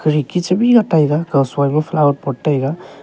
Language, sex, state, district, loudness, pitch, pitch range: Wancho, male, Arunachal Pradesh, Longding, -16 LUFS, 150 Hz, 140-170 Hz